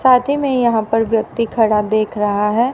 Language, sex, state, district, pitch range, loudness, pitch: Hindi, female, Haryana, Rohtak, 215-245 Hz, -16 LUFS, 225 Hz